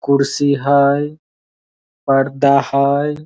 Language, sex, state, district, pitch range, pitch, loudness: Maithili, male, Bihar, Samastipur, 140-145 Hz, 140 Hz, -15 LUFS